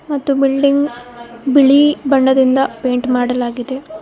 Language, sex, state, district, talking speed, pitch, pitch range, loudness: Kannada, female, Karnataka, Koppal, 90 wpm, 270 Hz, 245-280 Hz, -14 LUFS